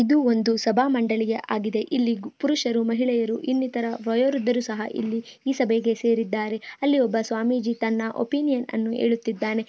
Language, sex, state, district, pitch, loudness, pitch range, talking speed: Kannada, female, Karnataka, Bijapur, 230 Hz, -24 LUFS, 225-250 Hz, 155 wpm